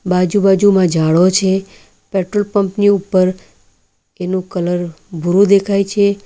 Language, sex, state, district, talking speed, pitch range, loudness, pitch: Gujarati, female, Gujarat, Valsad, 105 wpm, 175-200 Hz, -14 LUFS, 185 Hz